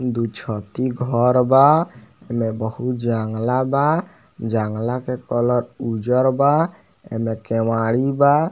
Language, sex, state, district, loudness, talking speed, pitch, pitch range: Bhojpuri, male, Bihar, Muzaffarpur, -20 LUFS, 115 wpm, 125 Hz, 115-135 Hz